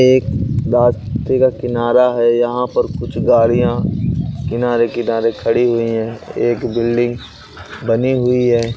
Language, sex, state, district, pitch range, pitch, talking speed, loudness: Bhojpuri, male, Uttar Pradesh, Gorakhpur, 115-125 Hz, 120 Hz, 130 wpm, -16 LUFS